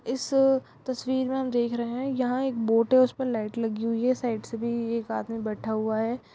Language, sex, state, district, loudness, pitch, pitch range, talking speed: Hindi, female, Goa, North and South Goa, -27 LUFS, 235 Hz, 225-255 Hz, 235 wpm